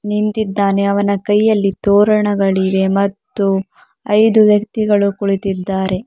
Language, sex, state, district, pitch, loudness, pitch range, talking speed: Kannada, female, Karnataka, Bidar, 200 Hz, -15 LUFS, 195-210 Hz, 80 wpm